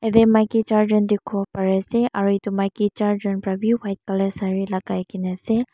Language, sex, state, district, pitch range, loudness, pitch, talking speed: Nagamese, female, Mizoram, Aizawl, 195-220 Hz, -21 LUFS, 200 Hz, 190 wpm